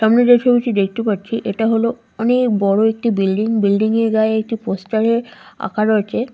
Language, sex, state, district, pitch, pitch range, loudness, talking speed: Bengali, female, West Bengal, North 24 Parganas, 220 Hz, 210-230 Hz, -17 LUFS, 170 wpm